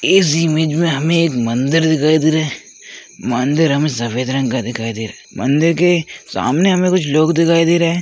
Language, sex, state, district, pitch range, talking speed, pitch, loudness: Hindi, male, Chhattisgarh, Balrampur, 130-165 Hz, 215 wpm, 155 Hz, -15 LUFS